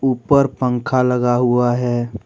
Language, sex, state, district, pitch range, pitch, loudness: Hindi, male, Jharkhand, Deoghar, 120-130 Hz, 125 Hz, -17 LUFS